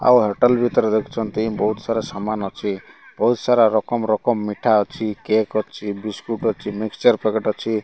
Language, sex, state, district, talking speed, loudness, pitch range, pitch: Odia, male, Odisha, Malkangiri, 160 wpm, -20 LUFS, 105-115 Hz, 110 Hz